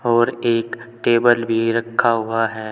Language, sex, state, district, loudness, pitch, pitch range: Hindi, male, Uttar Pradesh, Saharanpur, -18 LUFS, 115 Hz, 115-120 Hz